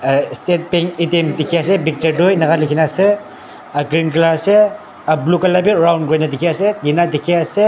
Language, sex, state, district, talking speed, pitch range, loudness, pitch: Nagamese, male, Nagaland, Dimapur, 205 wpm, 155-180 Hz, -15 LUFS, 170 Hz